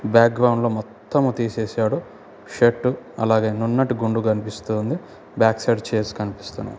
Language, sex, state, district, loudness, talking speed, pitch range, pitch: Telugu, male, Andhra Pradesh, Chittoor, -21 LUFS, 125 wpm, 110-120 Hz, 115 Hz